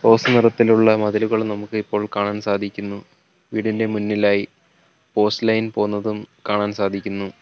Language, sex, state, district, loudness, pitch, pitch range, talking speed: Malayalam, male, Kerala, Kollam, -20 LUFS, 105 Hz, 100-110 Hz, 115 wpm